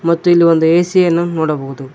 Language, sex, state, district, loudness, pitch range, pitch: Kannada, male, Karnataka, Koppal, -13 LUFS, 160-175 Hz, 170 Hz